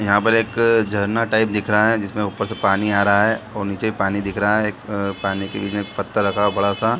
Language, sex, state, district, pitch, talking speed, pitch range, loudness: Hindi, male, Bihar, Saran, 105 Hz, 275 wpm, 100-110 Hz, -19 LUFS